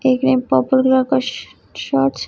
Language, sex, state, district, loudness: Hindi, female, Chhattisgarh, Raipur, -16 LUFS